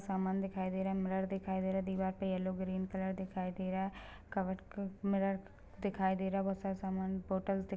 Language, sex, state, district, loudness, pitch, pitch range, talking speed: Hindi, female, Chhattisgarh, Balrampur, -38 LUFS, 190 Hz, 190-195 Hz, 240 wpm